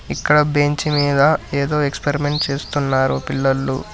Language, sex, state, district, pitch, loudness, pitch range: Telugu, male, Telangana, Hyderabad, 145 Hz, -18 LUFS, 135-150 Hz